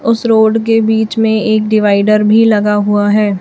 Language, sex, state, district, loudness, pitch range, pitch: Hindi, female, Chhattisgarh, Raipur, -11 LUFS, 210-225 Hz, 220 Hz